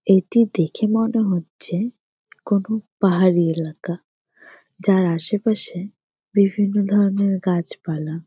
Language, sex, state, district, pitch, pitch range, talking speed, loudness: Bengali, female, West Bengal, Jalpaiguri, 195 Hz, 175-210 Hz, 95 wpm, -20 LUFS